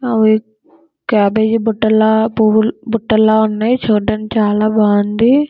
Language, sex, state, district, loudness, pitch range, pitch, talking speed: Telugu, female, Andhra Pradesh, Srikakulam, -13 LUFS, 215-230 Hz, 220 Hz, 100 wpm